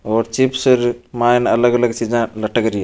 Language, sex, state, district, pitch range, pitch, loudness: Marwari, male, Rajasthan, Churu, 115-120 Hz, 120 Hz, -16 LUFS